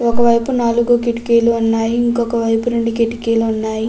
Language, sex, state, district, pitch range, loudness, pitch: Telugu, female, Andhra Pradesh, Krishna, 225-235 Hz, -16 LUFS, 235 Hz